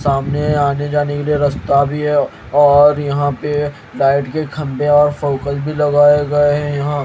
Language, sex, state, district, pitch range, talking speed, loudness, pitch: Hindi, male, Haryana, Jhajjar, 140-145 Hz, 180 wpm, -15 LUFS, 145 Hz